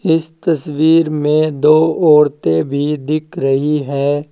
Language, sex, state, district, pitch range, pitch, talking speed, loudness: Hindi, male, Uttar Pradesh, Saharanpur, 145-160 Hz, 150 Hz, 125 wpm, -14 LUFS